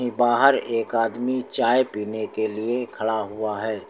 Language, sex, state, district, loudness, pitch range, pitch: Hindi, male, Uttar Pradesh, Lucknow, -22 LUFS, 110-125 Hz, 115 Hz